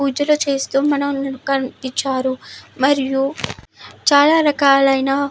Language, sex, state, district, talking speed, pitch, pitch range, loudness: Telugu, female, Andhra Pradesh, Chittoor, 90 wpm, 275 Hz, 270-285 Hz, -17 LUFS